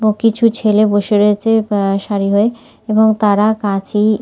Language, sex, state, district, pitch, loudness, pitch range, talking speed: Bengali, female, West Bengal, North 24 Parganas, 210 Hz, -14 LUFS, 205-220 Hz, 155 wpm